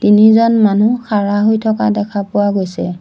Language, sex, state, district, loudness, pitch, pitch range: Assamese, female, Assam, Sonitpur, -13 LUFS, 210 Hz, 205-220 Hz